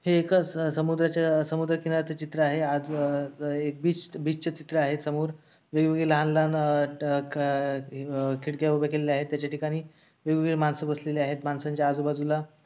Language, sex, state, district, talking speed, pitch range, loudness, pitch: Marathi, male, Maharashtra, Sindhudurg, 150 wpm, 145-160 Hz, -27 LUFS, 155 Hz